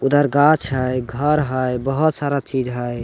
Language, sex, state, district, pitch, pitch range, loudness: Magahi, male, Bihar, Jamui, 135 Hz, 130-145 Hz, -19 LUFS